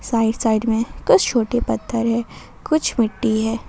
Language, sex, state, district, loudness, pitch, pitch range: Hindi, female, Jharkhand, Ranchi, -19 LUFS, 230 Hz, 225-235 Hz